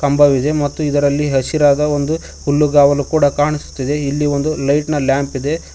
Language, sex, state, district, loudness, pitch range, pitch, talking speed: Kannada, male, Karnataka, Koppal, -15 LUFS, 140-150 Hz, 145 Hz, 135 wpm